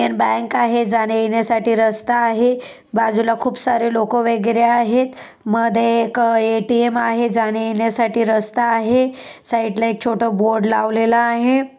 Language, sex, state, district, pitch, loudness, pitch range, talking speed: Marathi, female, Maharashtra, Dhule, 230 Hz, -17 LUFS, 225-235 Hz, 130 wpm